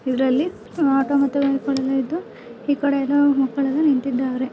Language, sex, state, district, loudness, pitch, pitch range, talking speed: Kannada, female, Karnataka, Gulbarga, -20 LUFS, 275 Hz, 265-285 Hz, 55 wpm